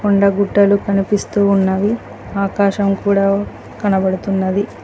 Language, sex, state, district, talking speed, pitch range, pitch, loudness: Telugu, female, Telangana, Mahabubabad, 85 wpm, 195-205 Hz, 200 Hz, -16 LUFS